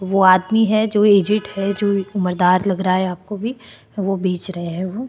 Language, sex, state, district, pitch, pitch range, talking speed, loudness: Hindi, female, Maharashtra, Chandrapur, 195 Hz, 185-210 Hz, 225 wpm, -18 LUFS